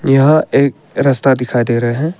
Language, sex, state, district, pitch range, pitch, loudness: Hindi, male, Arunachal Pradesh, Papum Pare, 125-145 Hz, 135 Hz, -13 LUFS